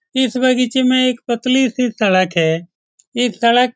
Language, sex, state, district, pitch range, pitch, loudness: Hindi, male, Bihar, Saran, 205-255 Hz, 245 Hz, -16 LUFS